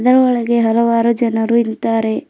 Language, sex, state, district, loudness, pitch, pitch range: Kannada, female, Karnataka, Bidar, -15 LUFS, 235 Hz, 225-235 Hz